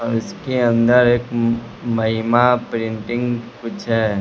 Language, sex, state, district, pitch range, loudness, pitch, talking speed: Hindi, male, Bihar, West Champaran, 115-120 Hz, -18 LUFS, 115 Hz, 115 wpm